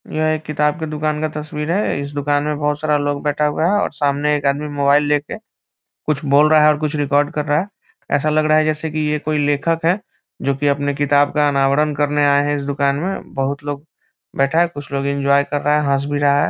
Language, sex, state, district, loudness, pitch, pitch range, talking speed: Hindi, male, Bihar, Muzaffarpur, -18 LUFS, 150 Hz, 145-155 Hz, 260 wpm